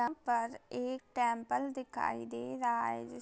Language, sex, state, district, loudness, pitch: Hindi, female, Bihar, Samastipur, -36 LUFS, 235 Hz